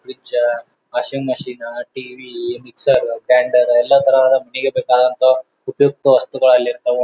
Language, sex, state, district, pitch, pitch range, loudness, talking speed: Kannada, male, Karnataka, Bijapur, 130 Hz, 125-135 Hz, -16 LUFS, 120 wpm